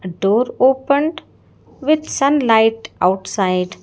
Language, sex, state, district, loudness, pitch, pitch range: English, female, Karnataka, Bangalore, -17 LUFS, 225 Hz, 190-280 Hz